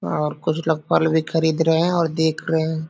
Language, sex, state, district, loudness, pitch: Hindi, male, Jharkhand, Sahebganj, -20 LUFS, 160 Hz